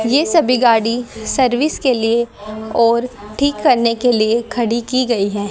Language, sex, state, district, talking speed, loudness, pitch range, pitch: Hindi, female, Haryana, Jhajjar, 165 wpm, -16 LUFS, 225-255 Hz, 235 Hz